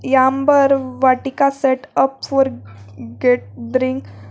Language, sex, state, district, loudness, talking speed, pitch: English, female, Jharkhand, Garhwa, -17 LUFS, 95 wpm, 260 Hz